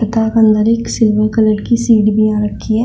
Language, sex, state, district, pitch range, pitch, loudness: Hindi, female, Uttar Pradesh, Shamli, 215-225 Hz, 220 Hz, -13 LUFS